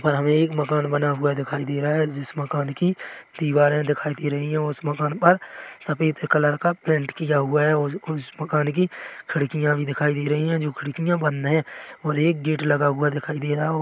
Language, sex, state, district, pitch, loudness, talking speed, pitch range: Hindi, male, Chhattisgarh, Bilaspur, 150 Hz, -23 LUFS, 230 wpm, 145-155 Hz